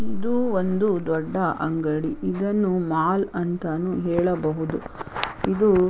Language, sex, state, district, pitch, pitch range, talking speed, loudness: Kannada, female, Karnataka, Chamarajanagar, 180 Hz, 160-195 Hz, 90 wpm, -24 LUFS